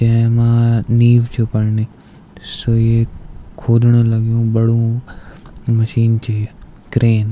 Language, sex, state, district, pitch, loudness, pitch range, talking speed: Garhwali, male, Uttarakhand, Tehri Garhwal, 115 Hz, -15 LUFS, 110-115 Hz, 115 wpm